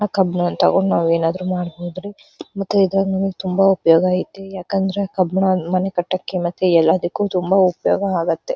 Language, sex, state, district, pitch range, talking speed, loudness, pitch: Kannada, female, Karnataka, Dharwad, 180-195 Hz, 135 wpm, -18 LUFS, 185 Hz